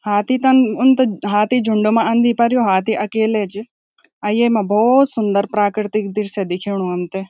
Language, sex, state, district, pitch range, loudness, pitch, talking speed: Garhwali, female, Uttarakhand, Tehri Garhwal, 205-240 Hz, -16 LUFS, 215 Hz, 180 wpm